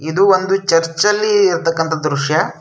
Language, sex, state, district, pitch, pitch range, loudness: Kannada, male, Karnataka, Shimoga, 165 Hz, 160-195 Hz, -15 LUFS